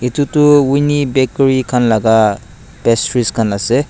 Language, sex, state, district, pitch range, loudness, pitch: Nagamese, male, Nagaland, Dimapur, 115-140 Hz, -13 LUFS, 125 Hz